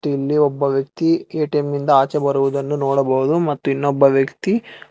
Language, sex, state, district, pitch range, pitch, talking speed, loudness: Kannada, male, Karnataka, Bangalore, 135-150 Hz, 140 Hz, 135 wpm, -18 LUFS